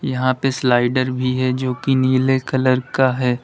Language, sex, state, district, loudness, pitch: Hindi, male, Uttar Pradesh, Lalitpur, -18 LUFS, 130 Hz